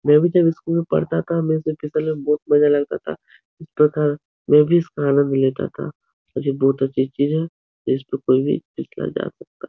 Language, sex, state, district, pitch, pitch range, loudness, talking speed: Hindi, male, Uttar Pradesh, Etah, 150 Hz, 140-160 Hz, -20 LUFS, 215 wpm